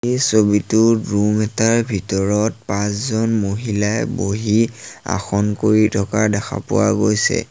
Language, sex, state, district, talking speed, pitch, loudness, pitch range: Assamese, male, Assam, Sonitpur, 110 wpm, 110 Hz, -18 LUFS, 105-110 Hz